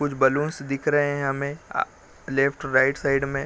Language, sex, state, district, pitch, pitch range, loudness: Hindi, male, Bihar, Gopalganj, 140 Hz, 135-145 Hz, -24 LUFS